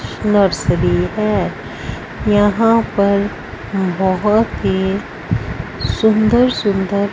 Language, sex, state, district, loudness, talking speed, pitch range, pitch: Hindi, female, Punjab, Fazilka, -16 LUFS, 65 wpm, 190-215 Hz, 200 Hz